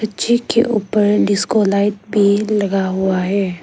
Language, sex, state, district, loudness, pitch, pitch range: Hindi, female, Arunachal Pradesh, Lower Dibang Valley, -16 LUFS, 205 Hz, 195-215 Hz